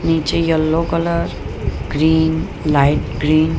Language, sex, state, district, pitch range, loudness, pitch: Gujarati, female, Gujarat, Gandhinagar, 150-165 Hz, -17 LUFS, 160 Hz